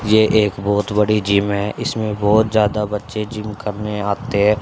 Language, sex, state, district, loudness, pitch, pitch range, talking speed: Hindi, male, Haryana, Charkhi Dadri, -18 LUFS, 105 Hz, 105-110 Hz, 170 wpm